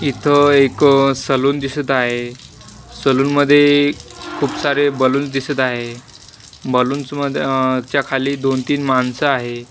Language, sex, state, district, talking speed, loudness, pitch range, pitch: Marathi, male, Maharashtra, Washim, 115 wpm, -16 LUFS, 130-145 Hz, 135 Hz